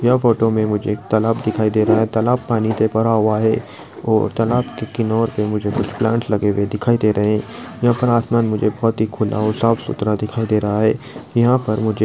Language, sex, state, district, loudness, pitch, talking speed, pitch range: Hindi, male, Maharashtra, Dhule, -18 LUFS, 110 Hz, 225 wpm, 105-115 Hz